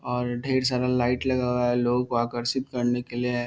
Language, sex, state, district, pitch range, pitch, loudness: Hindi, male, Bihar, Darbhanga, 120-125 Hz, 125 Hz, -25 LUFS